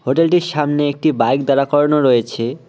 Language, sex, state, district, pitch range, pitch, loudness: Bengali, male, West Bengal, Cooch Behar, 130-150 Hz, 145 Hz, -15 LUFS